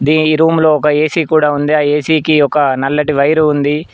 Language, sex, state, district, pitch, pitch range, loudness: Telugu, male, Telangana, Mahabubabad, 150 Hz, 145-155 Hz, -12 LUFS